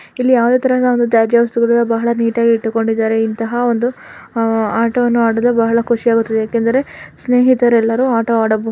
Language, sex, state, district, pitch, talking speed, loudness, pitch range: Kannada, female, Karnataka, Dakshina Kannada, 235 Hz, 130 wpm, -14 LUFS, 225-240 Hz